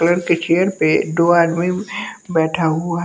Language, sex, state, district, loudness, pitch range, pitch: Hindi, male, Bihar, West Champaran, -17 LUFS, 165-180 Hz, 170 Hz